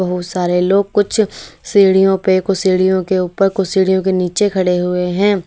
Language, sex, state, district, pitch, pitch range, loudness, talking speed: Hindi, female, Uttar Pradesh, Lalitpur, 190 Hz, 180-195 Hz, -14 LUFS, 185 wpm